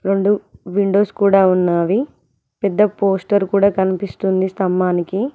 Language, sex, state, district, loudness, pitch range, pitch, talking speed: Telugu, female, Telangana, Mahabubabad, -17 LUFS, 185-200 Hz, 195 Hz, 100 wpm